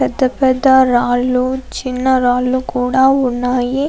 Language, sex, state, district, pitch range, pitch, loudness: Telugu, female, Andhra Pradesh, Anantapur, 250-260 Hz, 255 Hz, -14 LUFS